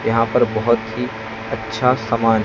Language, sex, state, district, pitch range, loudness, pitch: Hindi, male, Maharashtra, Gondia, 110-120 Hz, -19 LUFS, 115 Hz